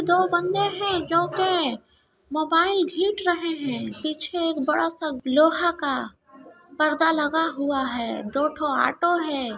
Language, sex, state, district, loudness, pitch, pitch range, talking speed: Hindi, female, Bihar, Kishanganj, -23 LUFS, 325 Hz, 295-350 Hz, 125 wpm